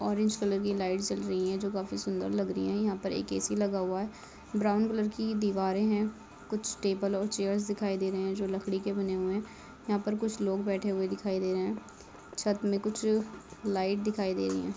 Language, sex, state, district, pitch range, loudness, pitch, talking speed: Hindi, female, Jharkhand, Jamtara, 190-210 Hz, -32 LUFS, 195 Hz, 230 wpm